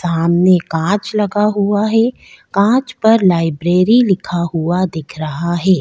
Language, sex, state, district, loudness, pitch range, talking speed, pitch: Hindi, female, Delhi, New Delhi, -15 LUFS, 170-210 Hz, 135 wpm, 185 Hz